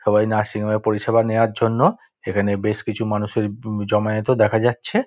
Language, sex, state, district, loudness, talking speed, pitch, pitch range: Bengali, male, West Bengal, Dakshin Dinajpur, -20 LUFS, 175 wpm, 110 Hz, 105-115 Hz